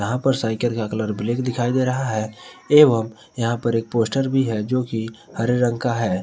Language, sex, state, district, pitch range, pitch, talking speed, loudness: Hindi, male, Jharkhand, Garhwa, 110-125 Hz, 115 Hz, 210 wpm, -21 LUFS